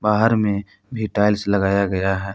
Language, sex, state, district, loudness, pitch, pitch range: Hindi, male, Jharkhand, Palamu, -20 LUFS, 100 Hz, 100-105 Hz